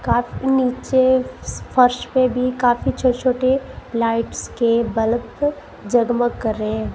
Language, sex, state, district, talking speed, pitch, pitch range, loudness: Hindi, female, Punjab, Kapurthala, 120 wpm, 245 Hz, 235-255 Hz, -19 LUFS